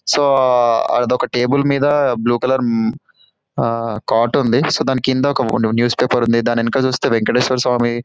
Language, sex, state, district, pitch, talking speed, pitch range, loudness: Telugu, male, Telangana, Karimnagar, 120 Hz, 155 wpm, 115-130 Hz, -16 LUFS